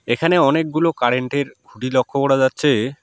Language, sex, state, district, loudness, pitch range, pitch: Bengali, male, West Bengal, Alipurduar, -18 LUFS, 130-155 Hz, 140 Hz